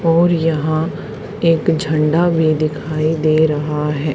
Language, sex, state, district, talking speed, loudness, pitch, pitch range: Hindi, female, Haryana, Charkhi Dadri, 130 wpm, -16 LUFS, 155 Hz, 155-165 Hz